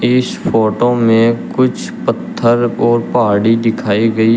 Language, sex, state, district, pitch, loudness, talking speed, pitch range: Hindi, male, Uttar Pradesh, Shamli, 115 Hz, -13 LUFS, 135 wpm, 110-120 Hz